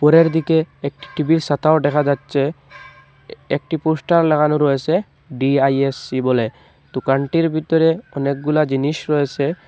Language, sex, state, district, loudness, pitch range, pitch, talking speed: Bengali, male, Assam, Hailakandi, -18 LUFS, 140-160 Hz, 145 Hz, 105 wpm